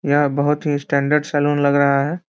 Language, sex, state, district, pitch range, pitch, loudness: Hindi, male, Bihar, Muzaffarpur, 140-150 Hz, 145 Hz, -18 LUFS